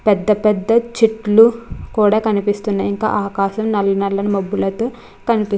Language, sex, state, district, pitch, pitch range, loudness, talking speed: Telugu, female, Andhra Pradesh, Krishna, 210 Hz, 200-225 Hz, -17 LUFS, 85 wpm